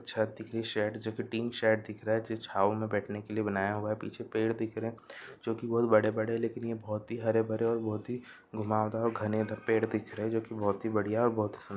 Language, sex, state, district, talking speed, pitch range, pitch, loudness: Hindi, male, Andhra Pradesh, Anantapur, 160 wpm, 105-115 Hz, 110 Hz, -32 LUFS